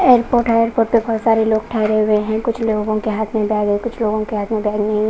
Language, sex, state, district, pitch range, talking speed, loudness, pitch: Hindi, female, Punjab, Kapurthala, 215-230 Hz, 295 wpm, -17 LUFS, 220 Hz